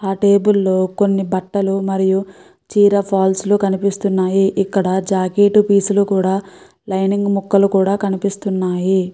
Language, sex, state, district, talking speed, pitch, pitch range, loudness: Telugu, female, Andhra Pradesh, Guntur, 120 wpm, 195 Hz, 190-200 Hz, -16 LUFS